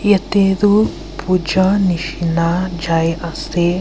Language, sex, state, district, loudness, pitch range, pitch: Nagamese, female, Nagaland, Kohima, -16 LUFS, 170-195 Hz, 180 Hz